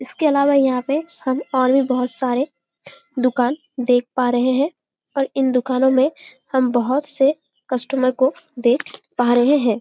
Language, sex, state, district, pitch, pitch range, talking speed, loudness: Hindi, female, Chhattisgarh, Bastar, 260 Hz, 250-280 Hz, 165 wpm, -19 LUFS